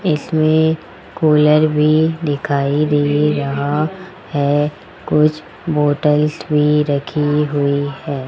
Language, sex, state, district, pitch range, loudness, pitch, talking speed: Hindi, male, Rajasthan, Jaipur, 145-155 Hz, -16 LUFS, 150 Hz, 95 wpm